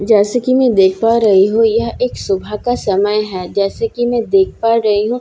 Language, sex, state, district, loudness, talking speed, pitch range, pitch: Hindi, female, Bihar, Katihar, -14 LUFS, 240 wpm, 200-235 Hz, 215 Hz